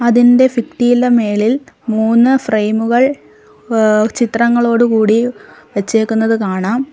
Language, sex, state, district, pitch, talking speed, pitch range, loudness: Malayalam, female, Kerala, Kollam, 235 Hz, 80 wpm, 220-245 Hz, -13 LUFS